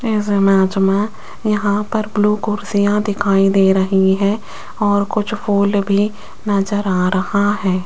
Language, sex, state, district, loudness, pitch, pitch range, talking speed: Hindi, female, Rajasthan, Jaipur, -16 LUFS, 205 Hz, 195-210 Hz, 145 wpm